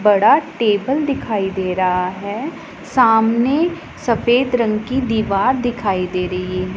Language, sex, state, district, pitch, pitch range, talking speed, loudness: Hindi, female, Punjab, Pathankot, 220 Hz, 190-255 Hz, 135 wpm, -17 LUFS